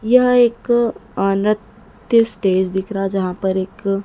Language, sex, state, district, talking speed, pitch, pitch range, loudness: Hindi, female, Madhya Pradesh, Dhar, 150 wpm, 200 Hz, 190-235 Hz, -18 LUFS